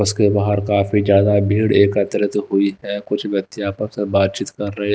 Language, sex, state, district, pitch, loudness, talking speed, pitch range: Hindi, male, Himachal Pradesh, Shimla, 100 Hz, -18 LUFS, 195 wpm, 100-105 Hz